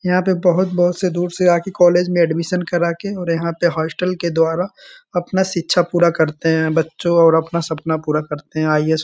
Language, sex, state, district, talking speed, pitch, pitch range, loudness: Hindi, male, Bihar, Sitamarhi, 210 wpm, 170 Hz, 160-180 Hz, -17 LUFS